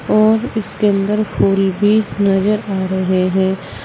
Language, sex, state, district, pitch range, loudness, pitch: Hindi, female, Uttar Pradesh, Saharanpur, 190-210 Hz, -16 LUFS, 195 Hz